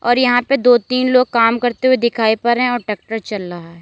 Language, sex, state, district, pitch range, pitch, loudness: Hindi, female, Uttar Pradesh, Lalitpur, 220-250 Hz, 240 Hz, -15 LUFS